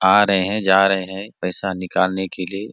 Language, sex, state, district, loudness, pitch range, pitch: Hindi, male, Chhattisgarh, Bastar, -19 LUFS, 95-100 Hz, 95 Hz